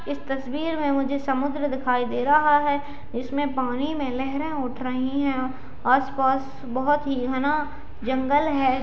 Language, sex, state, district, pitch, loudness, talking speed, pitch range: Hindi, female, Bihar, Saharsa, 270 Hz, -24 LUFS, 150 wpm, 260-290 Hz